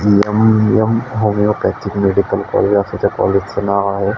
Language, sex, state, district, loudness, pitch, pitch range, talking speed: Marathi, male, Maharashtra, Aurangabad, -15 LUFS, 100 Hz, 100-110 Hz, 130 wpm